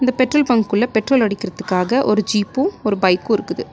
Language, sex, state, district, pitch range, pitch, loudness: Tamil, female, Tamil Nadu, Nilgiris, 205-255 Hz, 220 Hz, -17 LUFS